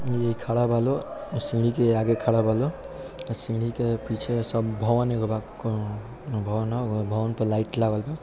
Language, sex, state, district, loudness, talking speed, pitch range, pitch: Maithili, male, Bihar, Samastipur, -26 LUFS, 180 wpm, 110-120 Hz, 115 Hz